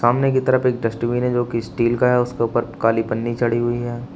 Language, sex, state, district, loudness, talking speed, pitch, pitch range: Hindi, male, Uttar Pradesh, Shamli, -20 LUFS, 260 wpm, 120 Hz, 115-125 Hz